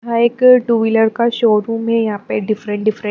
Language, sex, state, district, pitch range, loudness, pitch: Hindi, female, Maharashtra, Mumbai Suburban, 215-235 Hz, -15 LUFS, 225 Hz